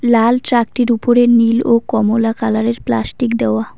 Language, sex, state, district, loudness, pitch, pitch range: Bengali, female, West Bengal, Cooch Behar, -14 LUFS, 230 Hz, 220-240 Hz